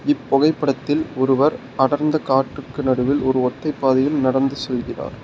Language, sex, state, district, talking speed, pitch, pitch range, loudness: Tamil, male, Tamil Nadu, Nilgiris, 115 wpm, 135 Hz, 130-145 Hz, -19 LUFS